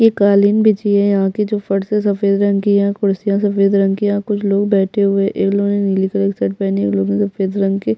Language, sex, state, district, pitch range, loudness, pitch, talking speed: Hindi, female, Chhattisgarh, Jashpur, 195-205 Hz, -15 LUFS, 200 Hz, 295 wpm